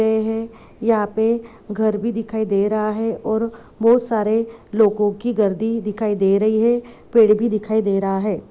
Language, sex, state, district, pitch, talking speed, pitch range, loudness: Hindi, female, Chhattisgarh, Korba, 220 Hz, 175 wpm, 210-230 Hz, -19 LUFS